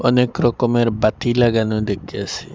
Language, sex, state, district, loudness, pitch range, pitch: Bengali, female, Assam, Hailakandi, -18 LUFS, 110-125 Hz, 120 Hz